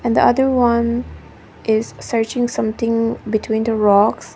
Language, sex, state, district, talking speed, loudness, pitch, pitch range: English, female, Nagaland, Dimapur, 140 wpm, -17 LUFS, 230 Hz, 220-240 Hz